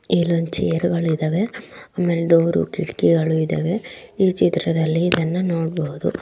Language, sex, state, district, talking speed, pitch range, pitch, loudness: Kannada, female, Karnataka, Dharwad, 115 wpm, 165-175 Hz, 170 Hz, -20 LUFS